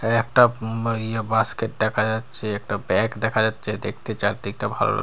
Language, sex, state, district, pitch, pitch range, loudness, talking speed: Bengali, male, Bihar, Katihar, 110 Hz, 105-115 Hz, -22 LUFS, 165 wpm